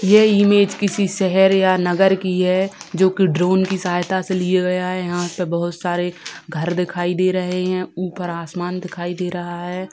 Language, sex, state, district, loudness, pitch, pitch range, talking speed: Hindi, female, Bihar, Sitamarhi, -19 LUFS, 180 Hz, 175-190 Hz, 185 wpm